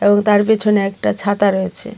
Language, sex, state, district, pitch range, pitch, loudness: Bengali, female, Tripura, West Tripura, 200-210 Hz, 205 Hz, -15 LUFS